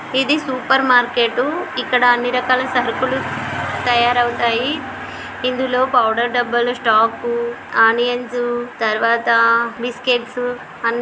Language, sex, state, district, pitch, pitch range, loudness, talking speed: Telugu, male, Telangana, Nalgonda, 245 Hz, 235-255 Hz, -17 LUFS, 85 wpm